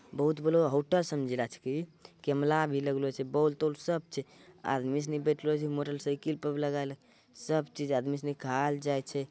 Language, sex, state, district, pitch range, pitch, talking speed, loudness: Angika, male, Bihar, Bhagalpur, 140-150 Hz, 145 Hz, 195 wpm, -32 LUFS